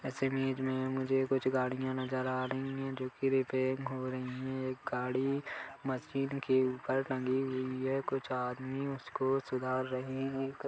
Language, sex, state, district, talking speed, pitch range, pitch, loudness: Hindi, male, Chhattisgarh, Kabirdham, 165 wpm, 130-135 Hz, 130 Hz, -35 LUFS